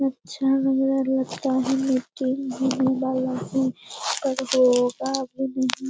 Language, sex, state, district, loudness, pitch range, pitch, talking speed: Hindi, female, Bihar, Lakhisarai, -23 LUFS, 260-270 Hz, 265 Hz, 90 wpm